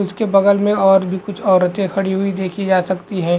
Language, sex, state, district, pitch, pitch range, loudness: Hindi, male, Chhattisgarh, Bastar, 195 Hz, 185-200 Hz, -16 LUFS